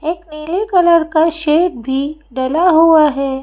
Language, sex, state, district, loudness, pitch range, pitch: Hindi, female, Madhya Pradesh, Bhopal, -14 LUFS, 280-335 Hz, 315 Hz